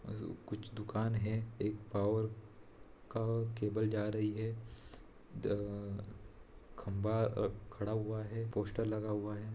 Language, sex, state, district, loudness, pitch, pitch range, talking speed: Hindi, male, Bihar, Saran, -38 LUFS, 105 Hz, 105-110 Hz, 120 wpm